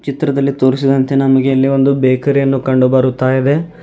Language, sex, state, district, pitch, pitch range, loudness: Kannada, male, Karnataka, Bidar, 135 Hz, 130-140 Hz, -13 LUFS